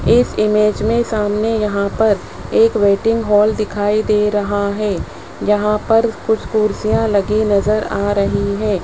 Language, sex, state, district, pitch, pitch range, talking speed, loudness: Hindi, male, Rajasthan, Jaipur, 210 Hz, 205-220 Hz, 150 wpm, -16 LUFS